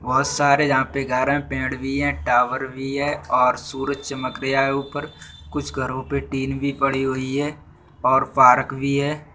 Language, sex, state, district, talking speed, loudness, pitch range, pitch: Bundeli, male, Uttar Pradesh, Budaun, 195 wpm, -21 LUFS, 130-140 Hz, 135 Hz